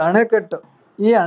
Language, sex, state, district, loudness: Kannada, male, Karnataka, Raichur, -17 LUFS